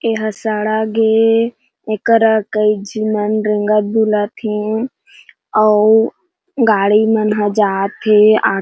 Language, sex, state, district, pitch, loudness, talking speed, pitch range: Chhattisgarhi, female, Chhattisgarh, Jashpur, 215 Hz, -14 LUFS, 105 wpm, 210-225 Hz